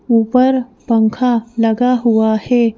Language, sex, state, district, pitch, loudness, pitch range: Hindi, female, Madhya Pradesh, Bhopal, 235 Hz, -14 LUFS, 225-250 Hz